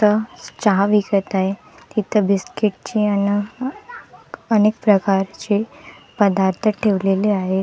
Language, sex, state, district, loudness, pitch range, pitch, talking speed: Marathi, female, Maharashtra, Gondia, -19 LUFS, 195-215 Hz, 205 Hz, 100 wpm